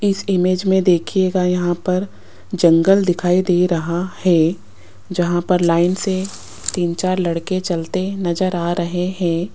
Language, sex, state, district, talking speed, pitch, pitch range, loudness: Hindi, female, Rajasthan, Jaipur, 145 wpm, 180 Hz, 170-185 Hz, -18 LUFS